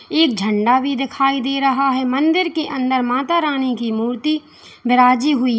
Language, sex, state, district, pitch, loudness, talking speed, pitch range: Hindi, female, Uttar Pradesh, Lalitpur, 270 Hz, -17 LUFS, 170 wpm, 250-295 Hz